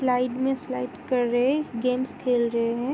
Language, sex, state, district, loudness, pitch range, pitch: Hindi, female, Uttar Pradesh, Varanasi, -25 LUFS, 240-260 Hz, 250 Hz